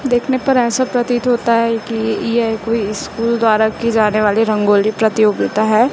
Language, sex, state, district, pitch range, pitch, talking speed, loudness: Hindi, female, Chhattisgarh, Raipur, 215-240 Hz, 225 Hz, 170 wpm, -15 LUFS